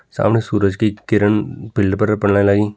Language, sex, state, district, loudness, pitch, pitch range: Kumaoni, male, Uttarakhand, Tehri Garhwal, -17 LUFS, 105 Hz, 100-110 Hz